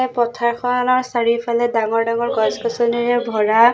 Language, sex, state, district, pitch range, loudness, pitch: Assamese, female, Assam, Sonitpur, 230-240 Hz, -18 LUFS, 235 Hz